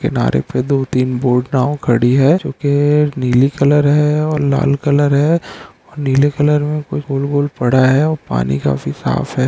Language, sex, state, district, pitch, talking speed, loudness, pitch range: Hindi, male, Bihar, Araria, 140 Hz, 175 wpm, -15 LUFS, 130-145 Hz